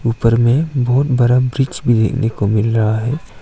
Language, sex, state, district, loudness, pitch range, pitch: Hindi, male, Arunachal Pradesh, Longding, -15 LUFS, 115-135 Hz, 120 Hz